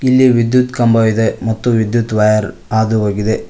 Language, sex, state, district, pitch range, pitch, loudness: Kannada, male, Karnataka, Koppal, 110-120 Hz, 110 Hz, -14 LUFS